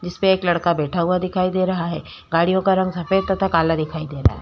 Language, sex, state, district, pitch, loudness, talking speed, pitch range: Hindi, female, Chhattisgarh, Korba, 175 Hz, -20 LUFS, 260 wpm, 165-185 Hz